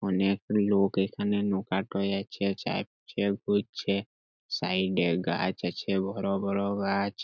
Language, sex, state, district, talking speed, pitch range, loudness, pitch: Bengali, male, West Bengal, Purulia, 125 wpm, 95-100 Hz, -29 LUFS, 100 Hz